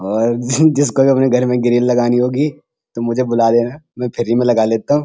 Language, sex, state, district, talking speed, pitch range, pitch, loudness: Hindi, male, Uttarakhand, Uttarkashi, 235 wpm, 120-135 Hz, 125 Hz, -15 LUFS